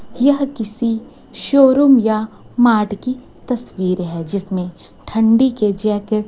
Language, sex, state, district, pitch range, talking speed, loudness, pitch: Hindi, female, Chhattisgarh, Raipur, 205-255 Hz, 125 wpm, -16 LUFS, 220 Hz